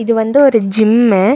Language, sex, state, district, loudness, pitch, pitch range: Tamil, female, Karnataka, Bangalore, -11 LUFS, 225 Hz, 215-240 Hz